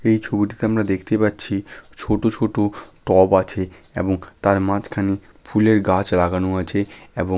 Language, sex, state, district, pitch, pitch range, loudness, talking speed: Bengali, male, West Bengal, Malda, 100 Hz, 95-105 Hz, -20 LUFS, 145 wpm